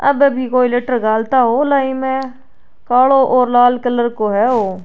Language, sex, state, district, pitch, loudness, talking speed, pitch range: Rajasthani, female, Rajasthan, Churu, 250 Hz, -14 LUFS, 175 wpm, 240-265 Hz